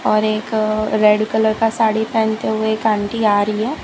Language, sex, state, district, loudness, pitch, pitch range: Hindi, female, Gujarat, Valsad, -17 LUFS, 220 Hz, 215-220 Hz